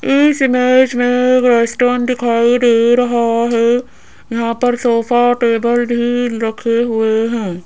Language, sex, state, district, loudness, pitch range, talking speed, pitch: Hindi, female, Rajasthan, Jaipur, -13 LUFS, 230-245 Hz, 135 wpm, 240 Hz